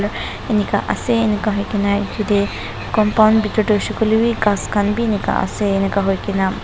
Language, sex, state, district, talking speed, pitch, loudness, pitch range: Nagamese, female, Nagaland, Dimapur, 155 wpm, 210 Hz, -18 LUFS, 200-215 Hz